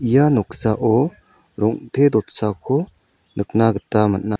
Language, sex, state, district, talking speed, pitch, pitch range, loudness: Garo, male, Meghalaya, South Garo Hills, 95 wpm, 110 Hz, 100-120 Hz, -19 LUFS